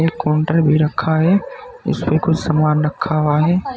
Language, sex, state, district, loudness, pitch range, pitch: Hindi, male, Uttar Pradesh, Saharanpur, -17 LUFS, 155-175 Hz, 160 Hz